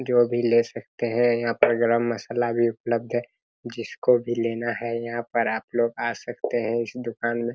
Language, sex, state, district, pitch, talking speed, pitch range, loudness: Hindi, male, Bihar, Araria, 120 Hz, 205 wpm, 115-120 Hz, -24 LUFS